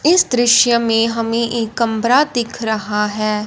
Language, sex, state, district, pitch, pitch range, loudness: Hindi, female, Punjab, Fazilka, 230 Hz, 220-240 Hz, -16 LUFS